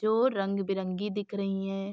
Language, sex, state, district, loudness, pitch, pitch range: Hindi, female, Uttar Pradesh, Jyotiba Phule Nagar, -30 LUFS, 195 Hz, 195-205 Hz